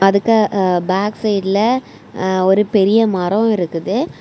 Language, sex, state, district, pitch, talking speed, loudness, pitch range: Tamil, female, Tamil Nadu, Kanyakumari, 200 Hz, 115 wpm, -16 LUFS, 190-215 Hz